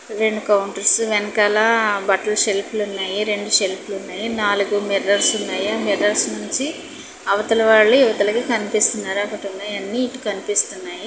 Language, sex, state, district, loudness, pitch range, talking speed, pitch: Telugu, female, Telangana, Hyderabad, -18 LUFS, 200-220 Hz, 125 wpm, 210 Hz